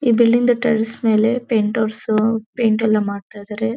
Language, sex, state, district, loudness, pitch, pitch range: Kannada, female, Karnataka, Dharwad, -18 LUFS, 220 Hz, 215-235 Hz